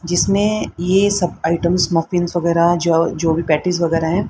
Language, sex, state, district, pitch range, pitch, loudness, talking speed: Hindi, female, Haryana, Rohtak, 165-180 Hz, 175 Hz, -17 LUFS, 140 wpm